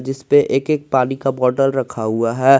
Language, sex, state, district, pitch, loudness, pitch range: Hindi, male, Jharkhand, Garhwa, 135 Hz, -17 LUFS, 125-135 Hz